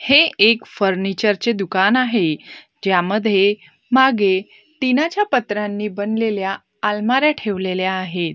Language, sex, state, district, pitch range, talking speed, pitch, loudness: Marathi, female, Maharashtra, Gondia, 195-255 Hz, 100 wpm, 210 Hz, -18 LUFS